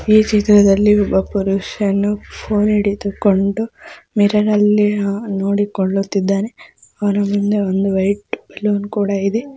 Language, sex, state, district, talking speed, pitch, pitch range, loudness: Kannada, female, Karnataka, Mysore, 105 wpm, 205 Hz, 195-210 Hz, -16 LUFS